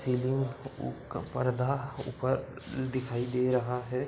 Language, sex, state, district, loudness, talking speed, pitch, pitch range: Hindi, male, Uttar Pradesh, Budaun, -32 LUFS, 130 wpm, 130 Hz, 125-135 Hz